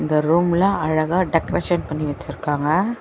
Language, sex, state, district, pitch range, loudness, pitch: Tamil, female, Tamil Nadu, Chennai, 150-175 Hz, -20 LUFS, 165 Hz